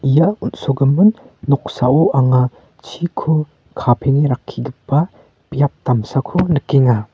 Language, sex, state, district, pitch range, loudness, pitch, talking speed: Garo, male, Meghalaya, North Garo Hills, 130-160 Hz, -16 LUFS, 140 Hz, 85 wpm